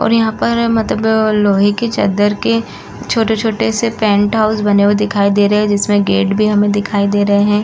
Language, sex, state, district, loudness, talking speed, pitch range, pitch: Hindi, female, Uttar Pradesh, Muzaffarnagar, -13 LUFS, 220 wpm, 205-220 Hz, 210 Hz